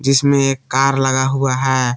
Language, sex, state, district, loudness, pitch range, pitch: Hindi, male, Jharkhand, Palamu, -15 LUFS, 130-135 Hz, 135 Hz